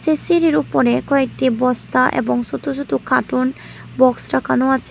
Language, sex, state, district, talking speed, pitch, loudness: Bengali, female, Tripura, West Tripura, 145 wpm, 255 Hz, -17 LUFS